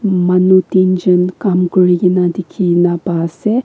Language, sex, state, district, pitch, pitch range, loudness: Nagamese, female, Nagaland, Kohima, 180 Hz, 180-185 Hz, -13 LUFS